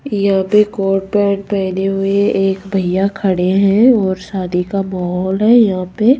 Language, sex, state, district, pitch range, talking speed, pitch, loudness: Hindi, female, Rajasthan, Jaipur, 190-205 Hz, 165 wpm, 195 Hz, -15 LUFS